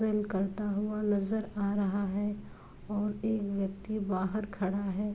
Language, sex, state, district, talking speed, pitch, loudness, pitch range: Hindi, female, Uttar Pradesh, Varanasi, 140 wpm, 205 Hz, -33 LUFS, 195-210 Hz